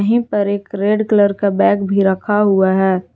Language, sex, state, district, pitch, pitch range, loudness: Hindi, female, Jharkhand, Garhwa, 200 Hz, 195-210 Hz, -15 LUFS